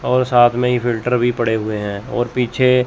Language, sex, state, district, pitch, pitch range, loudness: Hindi, male, Chandigarh, Chandigarh, 120 Hz, 115-125 Hz, -17 LUFS